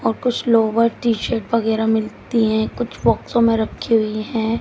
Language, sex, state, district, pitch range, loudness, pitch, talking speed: Hindi, female, Haryana, Jhajjar, 220-235 Hz, -19 LUFS, 225 Hz, 180 wpm